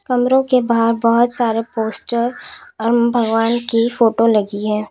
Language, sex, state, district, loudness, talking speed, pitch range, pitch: Hindi, female, Uttar Pradesh, Lalitpur, -16 LUFS, 145 wpm, 225-240 Hz, 230 Hz